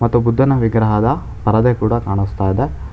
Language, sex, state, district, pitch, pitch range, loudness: Kannada, male, Karnataka, Bangalore, 115 Hz, 105-120 Hz, -16 LUFS